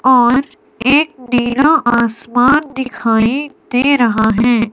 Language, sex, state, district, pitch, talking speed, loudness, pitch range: Hindi, female, Himachal Pradesh, Shimla, 245 Hz, 100 wpm, -13 LUFS, 235-275 Hz